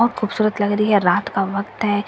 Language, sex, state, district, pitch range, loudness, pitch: Hindi, female, Bihar, Katihar, 200-215 Hz, -19 LUFS, 205 Hz